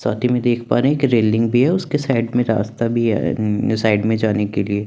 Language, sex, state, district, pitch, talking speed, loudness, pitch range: Hindi, male, Chandigarh, Chandigarh, 115 Hz, 285 wpm, -18 LUFS, 110-125 Hz